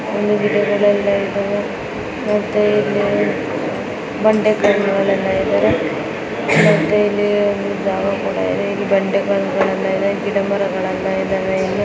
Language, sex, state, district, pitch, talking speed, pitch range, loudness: Kannada, female, Karnataka, Dakshina Kannada, 205 Hz, 65 wpm, 195-205 Hz, -17 LUFS